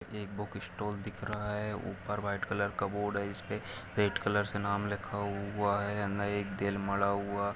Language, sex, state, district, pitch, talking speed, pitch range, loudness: Hindi, male, Chhattisgarh, Kabirdham, 100 Hz, 190 wpm, 100-105 Hz, -35 LUFS